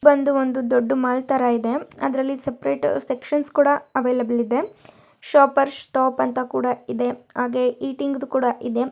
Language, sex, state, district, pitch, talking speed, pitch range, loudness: Kannada, female, Karnataka, Mysore, 260 Hz, 150 wpm, 240-275 Hz, -21 LUFS